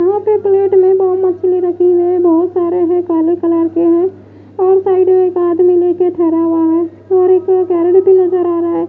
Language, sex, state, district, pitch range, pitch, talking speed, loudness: Hindi, female, Bihar, West Champaran, 345-370 Hz, 360 Hz, 215 wpm, -12 LUFS